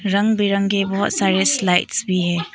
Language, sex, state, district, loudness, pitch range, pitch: Hindi, female, Arunachal Pradesh, Papum Pare, -18 LUFS, 185-205 Hz, 195 Hz